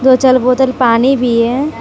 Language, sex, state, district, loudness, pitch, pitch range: Hindi, female, Jharkhand, Deoghar, -11 LUFS, 255 Hz, 245-265 Hz